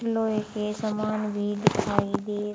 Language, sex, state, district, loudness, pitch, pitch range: Hindi, male, Haryana, Charkhi Dadri, -27 LUFS, 210 Hz, 205-215 Hz